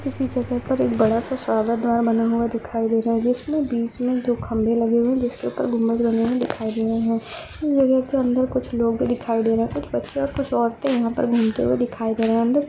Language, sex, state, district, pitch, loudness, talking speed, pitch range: Hindi, female, Rajasthan, Churu, 235 Hz, -22 LUFS, 260 wpm, 230-255 Hz